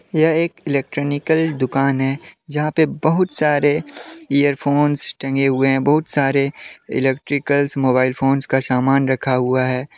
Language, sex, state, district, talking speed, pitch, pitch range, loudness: Hindi, male, Jharkhand, Deoghar, 140 wpm, 140 Hz, 135-150 Hz, -18 LUFS